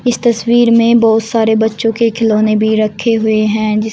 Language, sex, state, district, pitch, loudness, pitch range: Hindi, female, Uttar Pradesh, Shamli, 220 Hz, -12 LUFS, 215-230 Hz